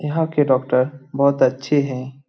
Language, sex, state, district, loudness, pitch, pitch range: Hindi, male, Bihar, Lakhisarai, -19 LUFS, 140 Hz, 130-145 Hz